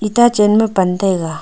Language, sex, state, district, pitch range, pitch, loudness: Wancho, female, Arunachal Pradesh, Longding, 185-220 Hz, 210 Hz, -14 LUFS